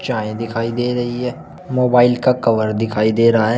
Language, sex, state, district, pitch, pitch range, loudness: Hindi, male, Uttar Pradesh, Saharanpur, 115 Hz, 110-125 Hz, -17 LUFS